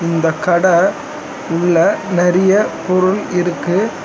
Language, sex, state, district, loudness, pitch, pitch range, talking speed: Tamil, male, Tamil Nadu, Chennai, -15 LUFS, 180 Hz, 175-200 Hz, 90 wpm